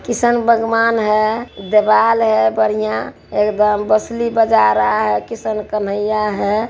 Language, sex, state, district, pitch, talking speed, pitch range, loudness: Hindi, male, Bihar, Araria, 215 Hz, 125 wpm, 200-225 Hz, -16 LUFS